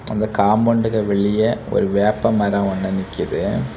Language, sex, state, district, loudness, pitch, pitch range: Tamil, male, Tamil Nadu, Kanyakumari, -19 LUFS, 105 Hz, 100-110 Hz